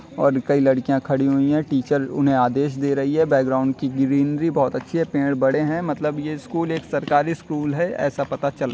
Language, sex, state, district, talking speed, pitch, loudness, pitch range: Hindi, male, Uttar Pradesh, Etah, 220 wpm, 140 Hz, -21 LUFS, 135-150 Hz